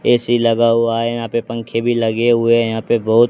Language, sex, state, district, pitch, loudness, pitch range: Hindi, male, Haryana, Rohtak, 115 Hz, -16 LUFS, 115-120 Hz